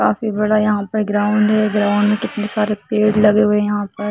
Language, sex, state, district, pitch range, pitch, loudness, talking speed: Hindi, female, Jharkhand, Sahebganj, 210-215 Hz, 210 Hz, -16 LUFS, 235 wpm